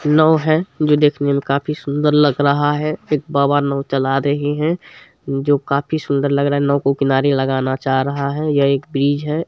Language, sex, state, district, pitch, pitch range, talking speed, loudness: Hindi, male, Bihar, Supaul, 145 Hz, 140-150 Hz, 210 wpm, -17 LUFS